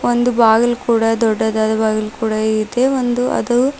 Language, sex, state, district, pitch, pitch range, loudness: Kannada, female, Karnataka, Bidar, 225 Hz, 220-245 Hz, -16 LUFS